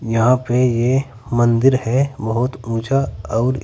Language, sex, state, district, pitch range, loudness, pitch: Hindi, male, Uttar Pradesh, Saharanpur, 115-130 Hz, -18 LUFS, 120 Hz